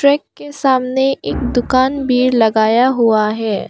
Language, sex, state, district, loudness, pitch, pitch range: Hindi, female, Arunachal Pradesh, Papum Pare, -15 LUFS, 255 Hz, 225-265 Hz